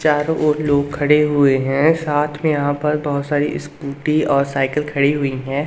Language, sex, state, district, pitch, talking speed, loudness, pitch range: Hindi, male, Madhya Pradesh, Umaria, 145 Hz, 190 wpm, -18 LUFS, 140-150 Hz